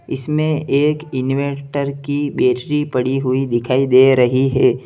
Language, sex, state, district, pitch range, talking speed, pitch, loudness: Hindi, male, Uttar Pradesh, Lalitpur, 130-145 Hz, 135 wpm, 135 Hz, -17 LUFS